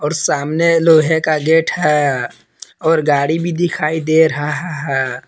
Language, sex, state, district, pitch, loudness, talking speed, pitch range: Hindi, male, Jharkhand, Palamu, 155 Hz, -15 LUFS, 150 wpm, 150-165 Hz